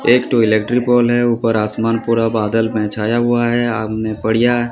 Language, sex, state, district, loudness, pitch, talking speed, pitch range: Hindi, male, Odisha, Sambalpur, -16 LUFS, 115 Hz, 180 wpm, 110-120 Hz